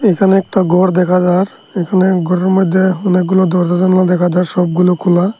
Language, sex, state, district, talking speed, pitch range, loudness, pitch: Bengali, male, Tripura, Unakoti, 155 wpm, 180-190 Hz, -13 LUFS, 185 Hz